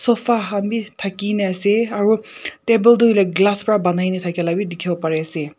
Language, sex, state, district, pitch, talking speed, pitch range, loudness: Nagamese, female, Nagaland, Kohima, 200 Hz, 215 wpm, 180-220 Hz, -18 LUFS